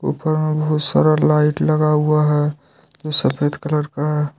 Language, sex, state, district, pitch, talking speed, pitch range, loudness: Hindi, male, Jharkhand, Deoghar, 150 Hz, 180 wpm, 150-155 Hz, -17 LUFS